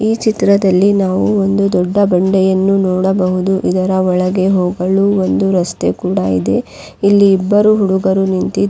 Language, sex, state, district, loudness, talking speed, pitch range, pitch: Kannada, female, Karnataka, Raichur, -13 LUFS, 125 wpm, 185-200 Hz, 190 Hz